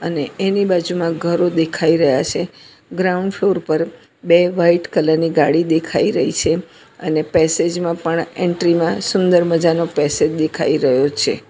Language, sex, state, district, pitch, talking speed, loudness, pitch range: Gujarati, female, Gujarat, Valsad, 170 Hz, 155 wpm, -17 LUFS, 160-175 Hz